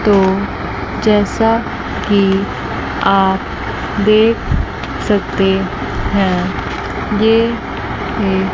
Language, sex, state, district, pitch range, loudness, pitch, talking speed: Hindi, female, Chandigarh, Chandigarh, 195-215 Hz, -15 LUFS, 205 Hz, 65 wpm